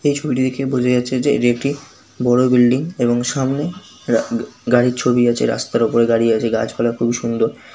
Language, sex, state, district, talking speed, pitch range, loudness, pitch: Bengali, male, West Bengal, Kolkata, 185 wpm, 120-135 Hz, -17 LUFS, 125 Hz